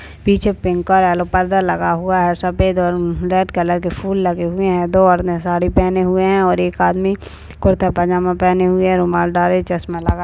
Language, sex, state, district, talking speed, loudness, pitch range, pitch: Hindi, female, Chhattisgarh, Bastar, 220 wpm, -16 LUFS, 175-185 Hz, 180 Hz